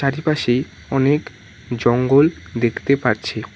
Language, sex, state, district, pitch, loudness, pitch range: Bengali, male, West Bengal, Cooch Behar, 125 Hz, -18 LUFS, 115-140 Hz